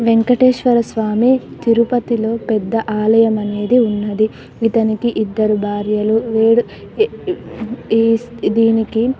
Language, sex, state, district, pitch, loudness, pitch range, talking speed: Telugu, female, Telangana, Nalgonda, 225 Hz, -16 LUFS, 215-235 Hz, 90 wpm